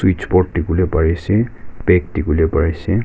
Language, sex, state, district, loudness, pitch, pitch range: Nagamese, male, Nagaland, Kohima, -17 LUFS, 90 Hz, 80-100 Hz